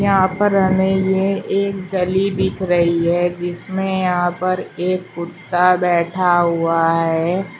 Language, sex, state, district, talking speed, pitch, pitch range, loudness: Hindi, female, Uttar Pradesh, Shamli, 135 wpm, 180 Hz, 175-190 Hz, -17 LUFS